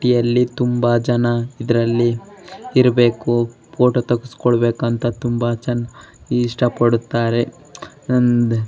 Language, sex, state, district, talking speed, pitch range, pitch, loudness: Kannada, male, Karnataka, Bellary, 95 wpm, 120-125 Hz, 120 Hz, -18 LUFS